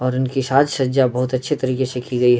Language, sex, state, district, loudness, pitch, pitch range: Hindi, male, Bihar, Darbhanga, -19 LUFS, 130 Hz, 125-135 Hz